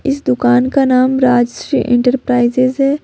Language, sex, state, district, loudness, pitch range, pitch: Hindi, female, Jharkhand, Ranchi, -13 LUFS, 245-270 Hz, 255 Hz